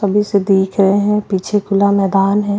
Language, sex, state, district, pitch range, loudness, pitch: Hindi, female, Goa, North and South Goa, 195-205 Hz, -14 LUFS, 200 Hz